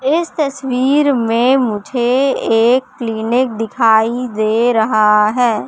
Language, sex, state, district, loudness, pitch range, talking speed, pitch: Hindi, female, Madhya Pradesh, Katni, -14 LUFS, 225-265 Hz, 105 wpm, 240 Hz